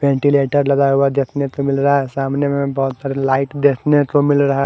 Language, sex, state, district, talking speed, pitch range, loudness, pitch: Hindi, male, Haryana, Charkhi Dadri, 245 wpm, 135-145 Hz, -16 LUFS, 140 Hz